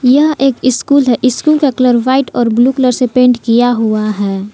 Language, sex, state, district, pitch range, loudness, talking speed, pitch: Hindi, female, Jharkhand, Palamu, 235-265 Hz, -11 LUFS, 210 wpm, 250 Hz